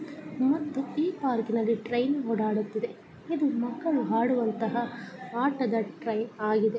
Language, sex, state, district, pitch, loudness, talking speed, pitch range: Kannada, female, Karnataka, Chamarajanagar, 240 Hz, -29 LUFS, 95 wpm, 225-275 Hz